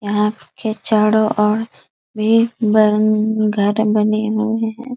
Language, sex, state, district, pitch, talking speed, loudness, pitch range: Hindi, female, Bihar, East Champaran, 215 Hz, 120 wpm, -16 LUFS, 210-220 Hz